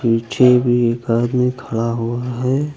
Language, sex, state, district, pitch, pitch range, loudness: Hindi, male, Uttar Pradesh, Lucknow, 120 Hz, 115-125 Hz, -17 LUFS